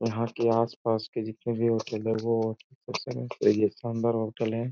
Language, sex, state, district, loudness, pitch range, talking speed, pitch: Hindi, male, Uttar Pradesh, Etah, -28 LUFS, 110-115 Hz, 150 wpm, 115 Hz